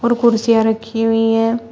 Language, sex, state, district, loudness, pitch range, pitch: Hindi, female, Uttar Pradesh, Shamli, -15 LUFS, 225-235 Hz, 225 Hz